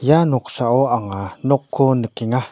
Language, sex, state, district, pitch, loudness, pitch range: Garo, male, Meghalaya, North Garo Hills, 125 Hz, -18 LUFS, 115-135 Hz